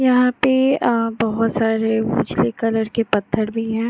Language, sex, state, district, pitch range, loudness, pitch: Hindi, female, Jharkhand, Jamtara, 225-240 Hz, -19 LUFS, 225 Hz